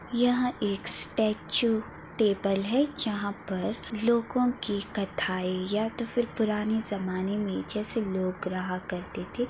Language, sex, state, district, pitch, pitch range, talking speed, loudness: Hindi, female, Bihar, Madhepura, 210 Hz, 195-235 Hz, 130 wpm, -29 LUFS